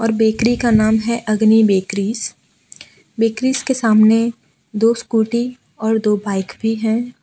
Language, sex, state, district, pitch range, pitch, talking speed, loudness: Hindi, female, Gujarat, Valsad, 215-235 Hz, 225 Hz, 140 wpm, -17 LUFS